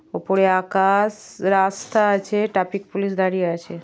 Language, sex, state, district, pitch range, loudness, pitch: Bengali, female, West Bengal, Paschim Medinipur, 185-200 Hz, -20 LUFS, 195 Hz